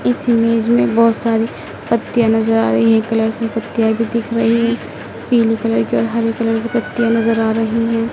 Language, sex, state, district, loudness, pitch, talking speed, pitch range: Hindi, female, Madhya Pradesh, Dhar, -16 LUFS, 230 Hz, 215 wpm, 225-230 Hz